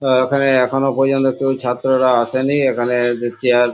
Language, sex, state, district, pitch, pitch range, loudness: Bengali, male, West Bengal, Kolkata, 130 Hz, 120-135 Hz, -15 LUFS